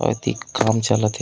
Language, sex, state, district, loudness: Chhattisgarhi, male, Chhattisgarh, Raigarh, -21 LUFS